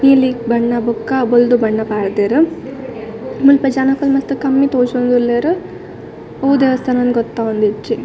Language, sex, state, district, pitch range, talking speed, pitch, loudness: Tulu, female, Karnataka, Dakshina Kannada, 235-270 Hz, 110 wpm, 250 Hz, -14 LUFS